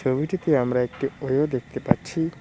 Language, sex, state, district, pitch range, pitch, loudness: Bengali, male, West Bengal, Cooch Behar, 130-160 Hz, 135 Hz, -24 LUFS